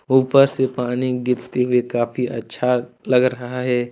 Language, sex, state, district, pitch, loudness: Hindi, male, Jharkhand, Ranchi, 125 Hz, -20 LUFS